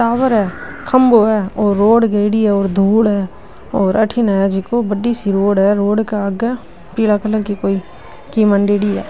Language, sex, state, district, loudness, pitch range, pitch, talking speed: Marwari, female, Rajasthan, Nagaur, -15 LUFS, 200-220 Hz, 205 Hz, 190 wpm